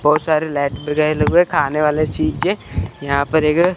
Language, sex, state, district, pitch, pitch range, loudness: Hindi, male, Chandigarh, Chandigarh, 150 Hz, 140-155 Hz, -17 LUFS